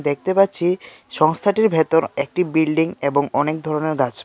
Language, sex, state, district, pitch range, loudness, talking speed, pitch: Bengali, male, Tripura, West Tripura, 145-180 Hz, -19 LUFS, 140 wpm, 160 Hz